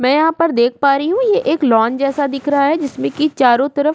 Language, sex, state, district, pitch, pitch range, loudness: Hindi, female, Chhattisgarh, Korba, 285 Hz, 270-305 Hz, -15 LUFS